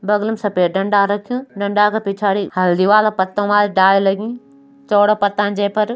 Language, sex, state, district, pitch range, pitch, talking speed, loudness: Hindi, male, Uttarakhand, Uttarkashi, 195-215 Hz, 205 Hz, 170 wpm, -16 LUFS